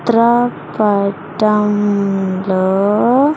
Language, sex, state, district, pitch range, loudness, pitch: Telugu, female, Andhra Pradesh, Sri Satya Sai, 195-230 Hz, -15 LUFS, 205 Hz